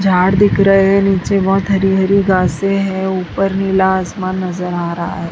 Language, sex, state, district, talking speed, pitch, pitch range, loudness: Hindi, female, Bihar, West Champaran, 190 wpm, 190 Hz, 185-195 Hz, -14 LUFS